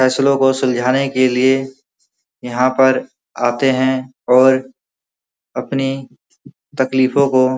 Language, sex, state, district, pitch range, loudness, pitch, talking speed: Hindi, male, Uttar Pradesh, Muzaffarnagar, 130-135 Hz, -15 LUFS, 130 Hz, 110 wpm